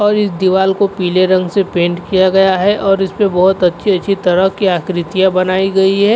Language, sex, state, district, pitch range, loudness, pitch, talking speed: Hindi, male, Uttar Pradesh, Varanasi, 185-195 Hz, -13 LUFS, 190 Hz, 225 wpm